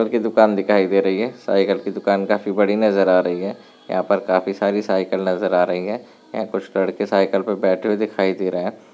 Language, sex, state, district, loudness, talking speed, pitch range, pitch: Hindi, male, Bihar, Darbhanga, -19 LUFS, 240 wpm, 95-105 Hz, 100 Hz